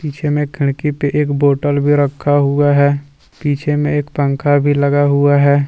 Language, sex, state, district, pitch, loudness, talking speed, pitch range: Hindi, male, Jharkhand, Deoghar, 145 Hz, -15 LUFS, 190 wpm, 140-145 Hz